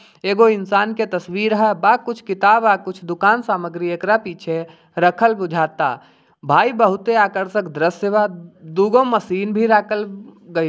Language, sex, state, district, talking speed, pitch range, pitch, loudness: Bhojpuri, male, Bihar, Gopalganj, 150 wpm, 175-215 Hz, 200 Hz, -18 LUFS